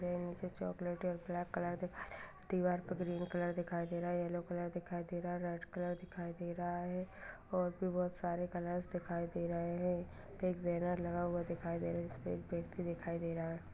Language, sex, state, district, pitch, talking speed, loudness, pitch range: Hindi, female, Bihar, Madhepura, 175 Hz, 235 wpm, -41 LUFS, 170-180 Hz